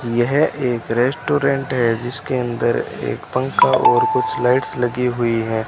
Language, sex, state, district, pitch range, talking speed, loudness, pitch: Hindi, male, Rajasthan, Bikaner, 120-135 Hz, 150 wpm, -18 LUFS, 125 Hz